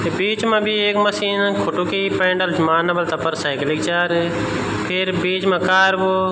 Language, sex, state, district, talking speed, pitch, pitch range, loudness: Garhwali, male, Uttarakhand, Tehri Garhwal, 170 wpm, 185 Hz, 170-195 Hz, -18 LUFS